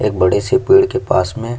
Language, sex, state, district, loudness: Hindi, male, Chhattisgarh, Kabirdham, -14 LUFS